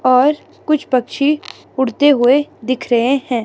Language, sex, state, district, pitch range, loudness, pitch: Hindi, female, Himachal Pradesh, Shimla, 255-290 Hz, -15 LUFS, 260 Hz